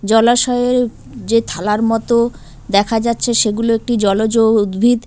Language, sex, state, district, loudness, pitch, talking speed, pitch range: Bengali, female, West Bengal, Cooch Behar, -15 LUFS, 225 Hz, 120 wpm, 215-235 Hz